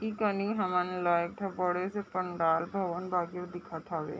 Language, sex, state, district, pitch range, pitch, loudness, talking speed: Chhattisgarhi, female, Chhattisgarh, Raigarh, 175-195 Hz, 180 Hz, -32 LUFS, 145 wpm